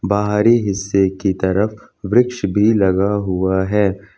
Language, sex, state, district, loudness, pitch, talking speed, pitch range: Hindi, male, Uttar Pradesh, Lucknow, -17 LUFS, 100 Hz, 130 wpm, 95-105 Hz